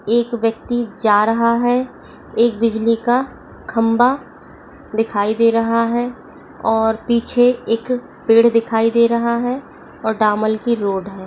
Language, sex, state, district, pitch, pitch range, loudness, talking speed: Hindi, female, West Bengal, Purulia, 230 Hz, 225-240 Hz, -17 LUFS, 140 wpm